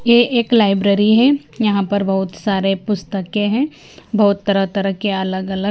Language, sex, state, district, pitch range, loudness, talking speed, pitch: Hindi, female, Himachal Pradesh, Shimla, 195-220 Hz, -17 LUFS, 145 wpm, 200 Hz